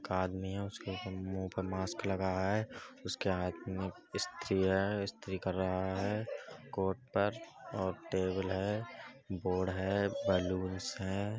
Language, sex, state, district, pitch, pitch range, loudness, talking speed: Hindi, male, Uttar Pradesh, Budaun, 95 Hz, 95-100 Hz, -36 LUFS, 160 wpm